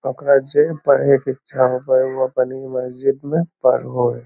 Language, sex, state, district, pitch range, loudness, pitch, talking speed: Magahi, male, Bihar, Lakhisarai, 130-140 Hz, -18 LUFS, 135 Hz, 195 wpm